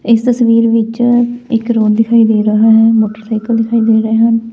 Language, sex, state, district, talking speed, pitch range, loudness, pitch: Punjabi, female, Punjab, Fazilka, 170 wpm, 220-230 Hz, -11 LUFS, 225 Hz